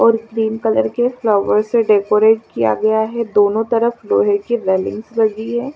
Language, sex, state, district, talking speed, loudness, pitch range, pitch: Hindi, female, Chandigarh, Chandigarh, 175 wpm, -16 LUFS, 205-230 Hz, 220 Hz